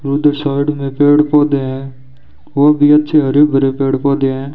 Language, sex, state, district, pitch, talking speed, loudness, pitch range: Hindi, male, Rajasthan, Bikaner, 140 Hz, 185 wpm, -13 LUFS, 135-145 Hz